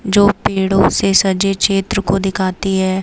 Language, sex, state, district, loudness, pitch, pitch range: Hindi, female, Uttar Pradesh, Lucknow, -15 LUFS, 195 Hz, 190-195 Hz